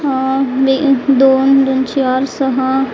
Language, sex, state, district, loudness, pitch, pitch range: Marathi, female, Maharashtra, Gondia, -13 LUFS, 270 Hz, 265-270 Hz